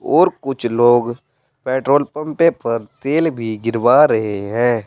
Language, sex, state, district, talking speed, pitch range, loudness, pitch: Hindi, male, Uttar Pradesh, Saharanpur, 135 wpm, 115-140 Hz, -16 LUFS, 120 Hz